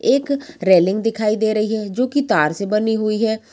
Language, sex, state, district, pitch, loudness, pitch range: Hindi, female, Bihar, Sitamarhi, 220 Hz, -18 LUFS, 210-225 Hz